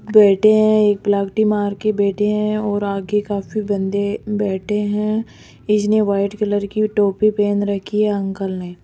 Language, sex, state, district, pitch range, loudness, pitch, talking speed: Hindi, female, Rajasthan, Jaipur, 200-215 Hz, -18 LUFS, 205 Hz, 155 wpm